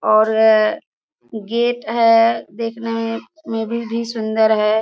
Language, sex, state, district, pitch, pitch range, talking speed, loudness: Hindi, female, Bihar, Kishanganj, 225 Hz, 220-230 Hz, 125 wpm, -17 LUFS